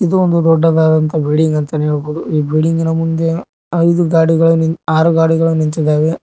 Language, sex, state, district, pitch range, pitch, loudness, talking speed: Kannada, male, Karnataka, Koppal, 155-165 Hz, 160 Hz, -13 LUFS, 155 wpm